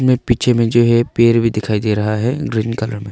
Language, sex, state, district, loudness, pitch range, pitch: Hindi, male, Arunachal Pradesh, Longding, -15 LUFS, 110-120 Hz, 115 Hz